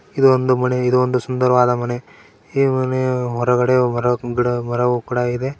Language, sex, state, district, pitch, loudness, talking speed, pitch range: Kannada, male, Karnataka, Koppal, 125 Hz, -18 LUFS, 130 wpm, 125-130 Hz